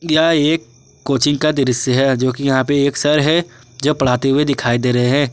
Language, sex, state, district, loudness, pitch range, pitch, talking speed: Hindi, male, Jharkhand, Ranchi, -16 LUFS, 125-150 Hz, 135 Hz, 225 wpm